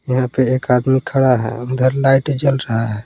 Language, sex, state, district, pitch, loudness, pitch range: Hindi, male, Jharkhand, Palamu, 130 Hz, -16 LUFS, 125-135 Hz